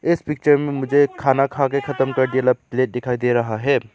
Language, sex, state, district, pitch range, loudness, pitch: Hindi, male, Arunachal Pradesh, Lower Dibang Valley, 125-140 Hz, -19 LUFS, 135 Hz